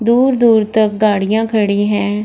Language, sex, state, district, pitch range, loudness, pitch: Hindi, female, Bihar, Gaya, 205-225 Hz, -13 LUFS, 215 Hz